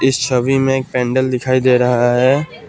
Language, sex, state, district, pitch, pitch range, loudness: Hindi, male, Assam, Kamrup Metropolitan, 130 Hz, 125-135 Hz, -15 LUFS